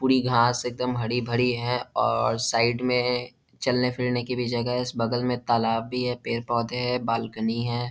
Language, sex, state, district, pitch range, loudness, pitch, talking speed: Hindi, male, Bihar, Jahanabad, 115-125 Hz, -25 LUFS, 120 Hz, 175 wpm